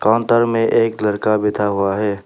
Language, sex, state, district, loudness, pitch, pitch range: Hindi, male, Arunachal Pradesh, Papum Pare, -17 LUFS, 105 Hz, 105-115 Hz